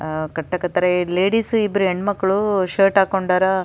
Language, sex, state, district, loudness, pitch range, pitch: Kannada, female, Karnataka, Raichur, -19 LUFS, 180-200 Hz, 190 Hz